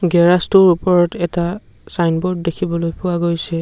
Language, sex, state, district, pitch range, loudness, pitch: Assamese, male, Assam, Sonitpur, 170-180 Hz, -16 LUFS, 175 Hz